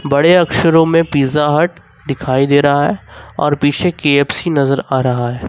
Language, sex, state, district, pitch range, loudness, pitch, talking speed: Hindi, male, Jharkhand, Ranchi, 140-165 Hz, -13 LUFS, 145 Hz, 175 wpm